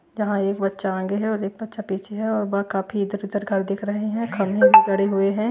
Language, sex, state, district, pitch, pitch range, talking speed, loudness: Hindi, female, Bihar, West Champaran, 205 Hz, 195-215 Hz, 260 wpm, -22 LUFS